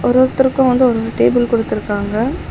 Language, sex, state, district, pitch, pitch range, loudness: Tamil, female, Tamil Nadu, Chennai, 245 Hz, 225-260 Hz, -15 LUFS